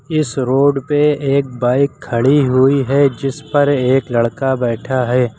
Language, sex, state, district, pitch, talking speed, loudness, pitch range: Hindi, male, Uttar Pradesh, Lucknow, 135 Hz, 155 wpm, -15 LUFS, 125-140 Hz